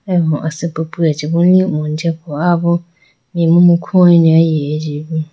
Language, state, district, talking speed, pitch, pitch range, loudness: Idu Mishmi, Arunachal Pradesh, Lower Dibang Valley, 170 wpm, 165 Hz, 155-170 Hz, -14 LUFS